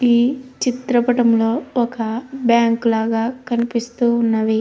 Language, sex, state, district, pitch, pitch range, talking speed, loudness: Telugu, female, Andhra Pradesh, Krishna, 235 Hz, 230-245 Hz, 105 wpm, -18 LUFS